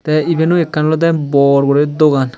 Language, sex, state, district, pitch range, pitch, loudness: Chakma, male, Tripura, Dhalai, 140-160 Hz, 150 Hz, -13 LUFS